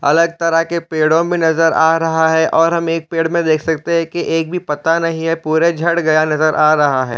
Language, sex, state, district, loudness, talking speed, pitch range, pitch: Hindi, male, Chhattisgarh, Raigarh, -15 LUFS, 250 wpm, 155-165 Hz, 165 Hz